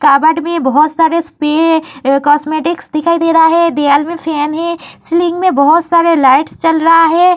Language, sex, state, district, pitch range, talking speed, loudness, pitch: Hindi, female, Uttar Pradesh, Varanasi, 300-335 Hz, 165 wpm, -11 LUFS, 325 Hz